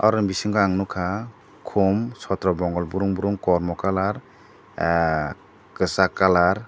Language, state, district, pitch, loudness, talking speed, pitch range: Kokborok, Tripura, Dhalai, 95 Hz, -23 LUFS, 115 wpm, 90-100 Hz